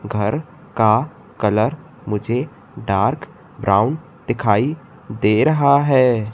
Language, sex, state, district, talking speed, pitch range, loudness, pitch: Hindi, male, Madhya Pradesh, Katni, 95 wpm, 105-150 Hz, -18 LUFS, 125 Hz